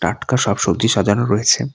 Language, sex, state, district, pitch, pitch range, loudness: Bengali, male, West Bengal, Alipurduar, 115 Hz, 100-125 Hz, -16 LUFS